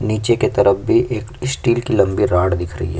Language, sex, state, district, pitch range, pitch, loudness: Hindi, male, Chhattisgarh, Kabirdham, 95-120 Hz, 110 Hz, -17 LUFS